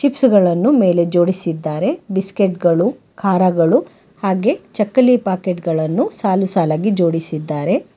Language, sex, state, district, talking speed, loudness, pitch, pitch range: Kannada, female, Karnataka, Bangalore, 105 wpm, -16 LUFS, 190 Hz, 170-215 Hz